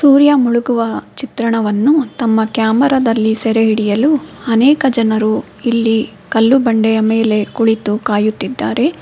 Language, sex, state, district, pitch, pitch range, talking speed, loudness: Kannada, female, Karnataka, Bangalore, 230 Hz, 220-260 Hz, 100 wpm, -14 LUFS